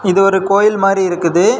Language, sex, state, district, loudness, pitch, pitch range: Tamil, male, Tamil Nadu, Kanyakumari, -13 LUFS, 195 Hz, 185-195 Hz